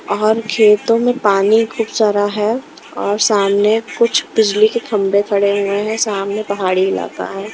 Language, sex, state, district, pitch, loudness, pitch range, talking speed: Hindi, female, Himachal Pradesh, Shimla, 210 Hz, -15 LUFS, 200-225 Hz, 160 wpm